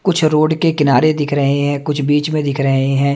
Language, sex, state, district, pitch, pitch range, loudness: Hindi, male, Haryana, Charkhi Dadri, 145 Hz, 140-155 Hz, -15 LUFS